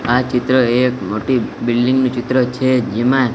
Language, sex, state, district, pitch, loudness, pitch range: Gujarati, male, Gujarat, Gandhinagar, 125 Hz, -16 LUFS, 120-130 Hz